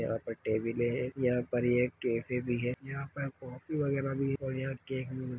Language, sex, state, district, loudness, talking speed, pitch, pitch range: Hindi, male, Bihar, Begusarai, -34 LUFS, 220 wpm, 125 Hz, 120-135 Hz